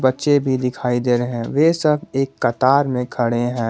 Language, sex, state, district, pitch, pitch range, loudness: Hindi, male, Jharkhand, Garhwa, 130 Hz, 120-140 Hz, -18 LUFS